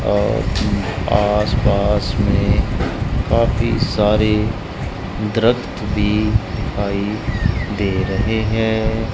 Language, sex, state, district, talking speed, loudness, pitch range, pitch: Hindi, male, Punjab, Kapurthala, 70 wpm, -18 LUFS, 100-110 Hz, 105 Hz